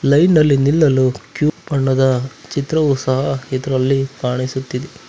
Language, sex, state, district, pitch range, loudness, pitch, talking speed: Kannada, male, Karnataka, Bangalore, 130-145 Hz, -17 LUFS, 135 Hz, 80 wpm